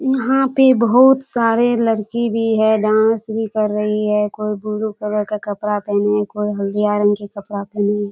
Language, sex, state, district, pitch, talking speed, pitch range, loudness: Hindi, female, Bihar, Kishanganj, 210 Hz, 190 wpm, 210-230 Hz, -17 LUFS